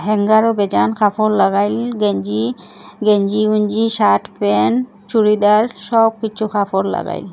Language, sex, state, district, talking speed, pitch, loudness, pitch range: Bengali, female, Assam, Hailakandi, 105 wpm, 210 Hz, -16 LUFS, 200-220 Hz